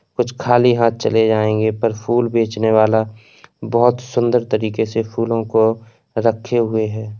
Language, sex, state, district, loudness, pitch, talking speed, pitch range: Hindi, male, Uttar Pradesh, Etah, -17 LUFS, 115 Hz, 150 wpm, 110-120 Hz